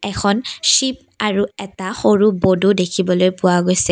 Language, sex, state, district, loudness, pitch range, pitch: Assamese, female, Assam, Kamrup Metropolitan, -16 LUFS, 185-205 Hz, 195 Hz